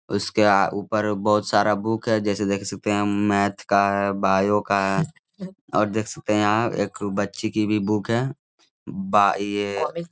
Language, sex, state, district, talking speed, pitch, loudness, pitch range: Hindi, male, Bihar, Jamui, 180 wpm, 105 Hz, -22 LUFS, 100-110 Hz